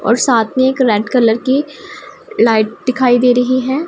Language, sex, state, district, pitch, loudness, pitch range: Hindi, female, Punjab, Pathankot, 250 Hz, -13 LUFS, 230-260 Hz